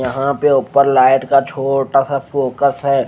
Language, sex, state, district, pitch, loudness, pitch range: Hindi, male, Chandigarh, Chandigarh, 135 Hz, -14 LUFS, 135-140 Hz